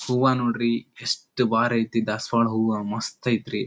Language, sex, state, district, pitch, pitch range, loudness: Kannada, male, Karnataka, Dharwad, 115 Hz, 110-120 Hz, -24 LUFS